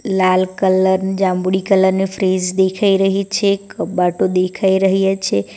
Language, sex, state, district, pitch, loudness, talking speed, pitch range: Gujarati, female, Gujarat, Valsad, 190 Hz, -16 LUFS, 140 wpm, 185-195 Hz